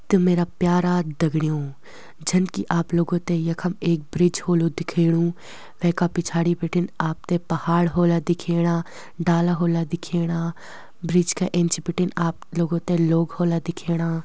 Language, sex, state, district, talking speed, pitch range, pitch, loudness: Garhwali, female, Uttarakhand, Uttarkashi, 145 wpm, 165-175 Hz, 170 Hz, -22 LUFS